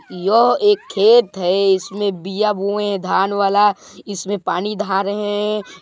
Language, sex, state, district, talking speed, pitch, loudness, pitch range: Hindi, male, Chhattisgarh, Balrampur, 145 wpm, 200 Hz, -17 LUFS, 195-210 Hz